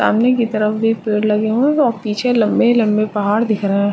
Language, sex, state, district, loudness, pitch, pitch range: Hindi, female, Uttarakhand, Uttarkashi, -16 LUFS, 220 Hz, 210-235 Hz